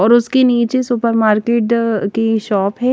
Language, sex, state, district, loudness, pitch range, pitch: Hindi, female, Chandigarh, Chandigarh, -15 LUFS, 220-240 Hz, 230 Hz